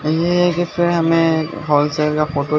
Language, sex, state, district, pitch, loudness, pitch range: Hindi, male, Bihar, Katihar, 160 Hz, -17 LUFS, 150-170 Hz